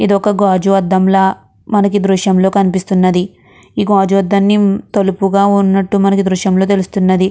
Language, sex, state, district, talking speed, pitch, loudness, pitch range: Telugu, female, Andhra Pradesh, Guntur, 125 wpm, 195 Hz, -12 LUFS, 190-200 Hz